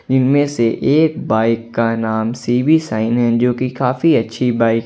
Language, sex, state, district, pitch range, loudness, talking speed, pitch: Hindi, male, Jharkhand, Ranchi, 115-135 Hz, -16 LUFS, 185 wpm, 120 Hz